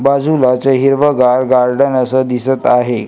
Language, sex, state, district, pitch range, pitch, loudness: Marathi, male, Maharashtra, Gondia, 125-135 Hz, 130 Hz, -12 LUFS